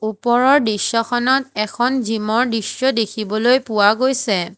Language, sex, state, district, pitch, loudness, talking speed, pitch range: Assamese, female, Assam, Hailakandi, 230 Hz, -17 LUFS, 120 wpm, 215-255 Hz